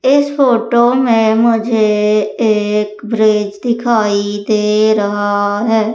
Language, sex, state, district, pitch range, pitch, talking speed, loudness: Hindi, female, Madhya Pradesh, Umaria, 210-235 Hz, 220 Hz, 100 wpm, -13 LUFS